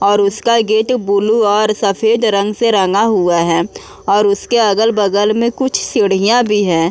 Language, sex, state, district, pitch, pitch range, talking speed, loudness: Hindi, female, Uttar Pradesh, Muzaffarnagar, 210 Hz, 200-225 Hz, 165 wpm, -13 LUFS